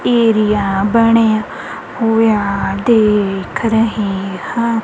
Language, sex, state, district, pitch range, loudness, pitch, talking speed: Punjabi, female, Punjab, Kapurthala, 200-230 Hz, -14 LUFS, 220 Hz, 75 wpm